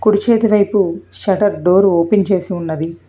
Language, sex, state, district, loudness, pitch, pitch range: Telugu, female, Telangana, Hyderabad, -14 LUFS, 195 Hz, 170-205 Hz